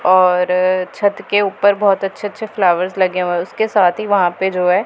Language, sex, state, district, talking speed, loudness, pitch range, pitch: Hindi, female, Punjab, Pathankot, 210 wpm, -16 LUFS, 180-205 Hz, 190 Hz